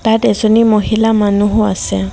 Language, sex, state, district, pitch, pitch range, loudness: Assamese, female, Assam, Kamrup Metropolitan, 215 Hz, 205-225 Hz, -12 LUFS